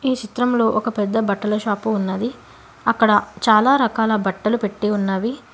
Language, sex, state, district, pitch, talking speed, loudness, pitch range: Telugu, female, Telangana, Hyderabad, 220 Hz, 150 wpm, -19 LUFS, 205-230 Hz